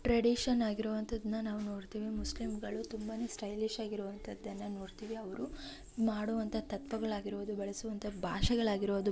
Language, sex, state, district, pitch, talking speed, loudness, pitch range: Kannada, female, Karnataka, Raichur, 215 Hz, 110 wpm, -37 LUFS, 205-225 Hz